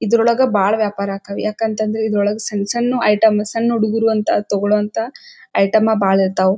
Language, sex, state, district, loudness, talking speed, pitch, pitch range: Kannada, female, Karnataka, Dharwad, -17 LUFS, 155 wpm, 215 Hz, 205-225 Hz